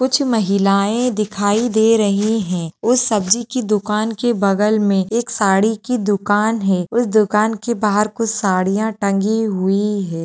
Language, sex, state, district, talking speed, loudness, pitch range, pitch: Hindi, female, Maharashtra, Sindhudurg, 160 wpm, -17 LUFS, 200-225 Hz, 210 Hz